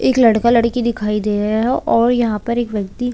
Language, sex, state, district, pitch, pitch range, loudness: Hindi, female, Chhattisgarh, Korba, 235 Hz, 210-240 Hz, -16 LUFS